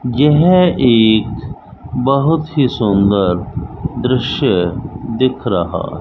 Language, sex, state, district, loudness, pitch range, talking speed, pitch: Hindi, male, Rajasthan, Bikaner, -14 LUFS, 110-145 Hz, 80 wpm, 125 Hz